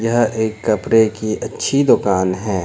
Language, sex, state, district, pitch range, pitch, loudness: Hindi, male, Bihar, Katihar, 100-115 Hz, 110 Hz, -17 LUFS